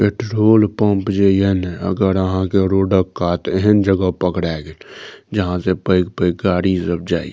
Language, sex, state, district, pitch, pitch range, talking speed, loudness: Maithili, male, Bihar, Saharsa, 95 Hz, 90-100 Hz, 180 wpm, -17 LUFS